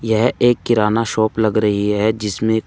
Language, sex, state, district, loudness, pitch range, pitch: Hindi, male, Uttar Pradesh, Saharanpur, -17 LUFS, 105-115 Hz, 110 Hz